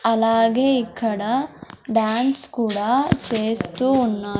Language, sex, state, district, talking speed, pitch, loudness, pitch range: Telugu, male, Andhra Pradesh, Sri Satya Sai, 80 wpm, 230 Hz, -20 LUFS, 220-255 Hz